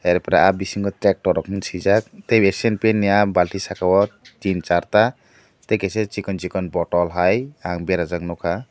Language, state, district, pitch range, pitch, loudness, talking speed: Kokborok, Tripura, Dhalai, 90-105 Hz, 95 Hz, -20 LUFS, 185 wpm